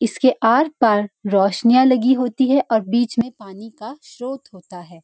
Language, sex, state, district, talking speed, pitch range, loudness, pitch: Hindi, female, Uttarakhand, Uttarkashi, 180 wpm, 205-255 Hz, -17 LUFS, 230 Hz